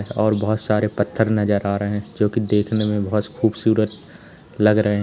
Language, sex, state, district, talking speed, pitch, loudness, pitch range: Hindi, male, Uttar Pradesh, Lalitpur, 190 wpm, 105 Hz, -20 LUFS, 105-110 Hz